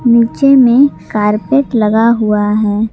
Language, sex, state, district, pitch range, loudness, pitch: Hindi, female, Jharkhand, Palamu, 210-255 Hz, -11 LUFS, 225 Hz